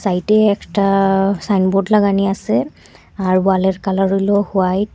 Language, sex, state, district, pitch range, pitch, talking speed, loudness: Bengali, female, Assam, Hailakandi, 190-200 Hz, 195 Hz, 135 wpm, -16 LUFS